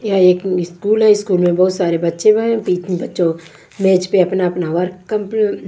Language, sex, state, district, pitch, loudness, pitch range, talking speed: Hindi, female, Bihar, West Champaran, 185 Hz, -16 LUFS, 175-205 Hz, 170 wpm